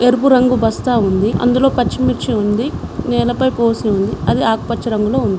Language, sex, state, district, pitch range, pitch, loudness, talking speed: Telugu, female, Telangana, Mahabubabad, 210-250 Hz, 230 Hz, -15 LUFS, 155 wpm